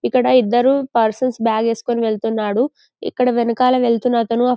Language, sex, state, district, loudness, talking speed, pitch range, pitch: Telugu, female, Telangana, Karimnagar, -17 LUFS, 160 wpm, 230-250 Hz, 240 Hz